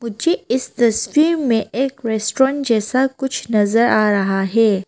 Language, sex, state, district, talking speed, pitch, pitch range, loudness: Hindi, female, Arunachal Pradesh, Papum Pare, 145 wpm, 230 Hz, 215-265 Hz, -17 LUFS